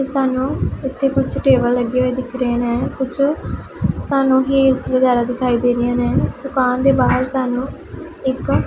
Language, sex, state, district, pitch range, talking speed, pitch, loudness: Punjabi, female, Punjab, Pathankot, 245-270 Hz, 160 wpm, 255 Hz, -17 LUFS